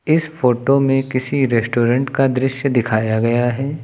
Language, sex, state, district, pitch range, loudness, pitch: Hindi, male, Uttar Pradesh, Lucknow, 120-135 Hz, -17 LUFS, 130 Hz